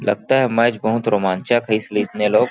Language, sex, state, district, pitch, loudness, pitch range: Hindi, male, Chhattisgarh, Balrampur, 110 Hz, -18 LUFS, 105-120 Hz